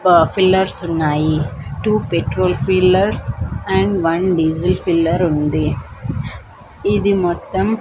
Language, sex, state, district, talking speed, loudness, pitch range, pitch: Telugu, female, Andhra Pradesh, Manyam, 100 wpm, -17 LUFS, 115-180 Hz, 155 Hz